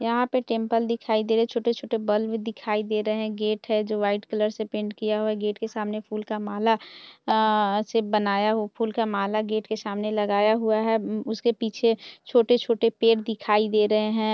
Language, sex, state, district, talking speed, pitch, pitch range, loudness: Hindi, female, Bihar, Saharsa, 200 wpm, 215 Hz, 215-225 Hz, -25 LUFS